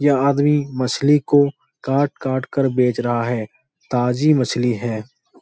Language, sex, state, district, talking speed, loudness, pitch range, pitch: Hindi, male, Bihar, Supaul, 165 wpm, -19 LUFS, 125-140 Hz, 130 Hz